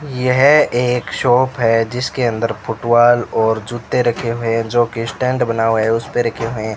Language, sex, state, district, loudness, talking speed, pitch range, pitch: Hindi, male, Rajasthan, Bikaner, -16 LUFS, 195 wpm, 115-125 Hz, 120 Hz